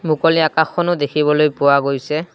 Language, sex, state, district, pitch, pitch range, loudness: Assamese, male, Assam, Kamrup Metropolitan, 150 Hz, 145-160 Hz, -16 LUFS